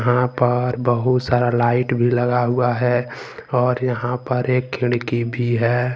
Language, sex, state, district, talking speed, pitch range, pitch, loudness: Hindi, male, Jharkhand, Ranchi, 160 wpm, 120-125 Hz, 125 Hz, -19 LUFS